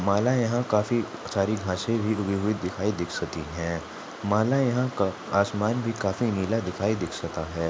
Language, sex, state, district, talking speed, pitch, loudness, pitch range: Hindi, male, Maharashtra, Aurangabad, 155 wpm, 100 Hz, -27 LUFS, 90-115 Hz